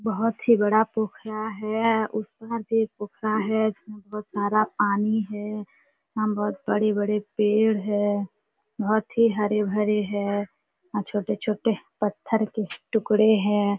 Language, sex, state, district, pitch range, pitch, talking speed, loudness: Hindi, female, Jharkhand, Sahebganj, 210-220 Hz, 215 Hz, 150 wpm, -25 LUFS